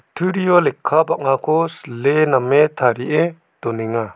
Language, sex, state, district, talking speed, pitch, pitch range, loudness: Garo, male, Meghalaya, South Garo Hills, 100 wpm, 150 Hz, 125-165 Hz, -17 LUFS